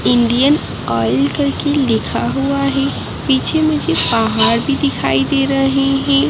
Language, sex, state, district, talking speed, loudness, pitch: Hindi, female, Uttarakhand, Uttarkashi, 135 wpm, -15 LUFS, 245 Hz